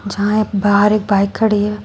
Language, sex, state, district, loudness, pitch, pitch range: Hindi, female, Uttar Pradesh, Shamli, -15 LUFS, 205 Hz, 200-210 Hz